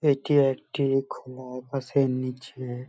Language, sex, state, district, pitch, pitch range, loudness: Bengali, male, West Bengal, Malda, 130 Hz, 130-140 Hz, -26 LUFS